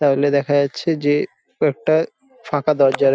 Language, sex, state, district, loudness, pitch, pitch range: Bengali, male, West Bengal, Jhargram, -19 LUFS, 145 Hz, 140-160 Hz